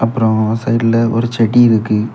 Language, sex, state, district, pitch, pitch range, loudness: Tamil, male, Tamil Nadu, Kanyakumari, 115 Hz, 110-115 Hz, -13 LUFS